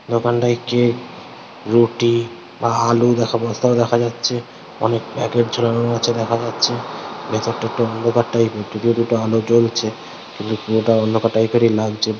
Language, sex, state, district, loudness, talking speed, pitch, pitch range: Bengali, male, West Bengal, North 24 Parganas, -18 LUFS, 135 wpm, 115 Hz, 110-120 Hz